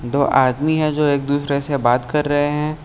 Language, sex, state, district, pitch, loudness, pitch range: Hindi, male, Uttar Pradesh, Lucknow, 145 Hz, -18 LUFS, 140-150 Hz